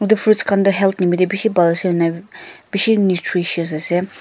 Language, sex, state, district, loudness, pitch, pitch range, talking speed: Nagamese, female, Nagaland, Kohima, -16 LUFS, 185 Hz, 175-200 Hz, 170 wpm